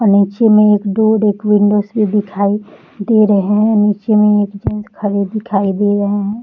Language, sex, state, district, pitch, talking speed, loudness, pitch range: Hindi, female, Bihar, Jahanabad, 210 Hz, 175 wpm, -13 LUFS, 205-215 Hz